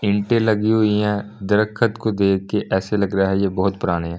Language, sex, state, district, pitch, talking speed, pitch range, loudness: Hindi, male, Delhi, New Delhi, 100 Hz, 215 wpm, 95-105 Hz, -19 LUFS